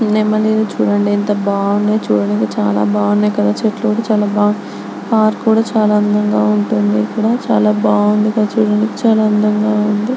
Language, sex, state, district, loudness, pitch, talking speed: Telugu, female, Andhra Pradesh, Anantapur, -14 LUFS, 210 Hz, 130 wpm